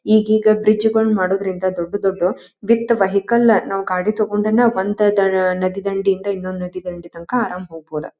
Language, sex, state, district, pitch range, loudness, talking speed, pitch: Kannada, female, Karnataka, Dharwad, 185-215 Hz, -18 LUFS, 155 wpm, 195 Hz